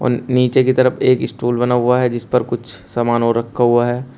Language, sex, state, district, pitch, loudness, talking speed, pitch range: Hindi, male, Uttar Pradesh, Shamli, 120 Hz, -16 LUFS, 230 wpm, 120-125 Hz